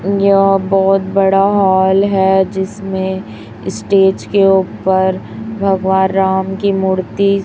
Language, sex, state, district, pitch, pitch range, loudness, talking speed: Hindi, female, Chhattisgarh, Raipur, 190 Hz, 190-195 Hz, -13 LUFS, 105 wpm